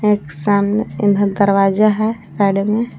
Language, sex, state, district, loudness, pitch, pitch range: Hindi, female, Jharkhand, Palamu, -16 LUFS, 200 Hz, 200-215 Hz